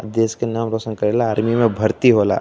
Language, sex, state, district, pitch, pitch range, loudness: Bhojpuri, male, Uttar Pradesh, Deoria, 115 Hz, 110-115 Hz, -18 LUFS